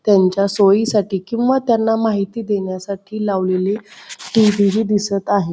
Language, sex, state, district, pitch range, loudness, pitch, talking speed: Marathi, female, Maharashtra, Pune, 195-220 Hz, -17 LUFS, 205 Hz, 120 wpm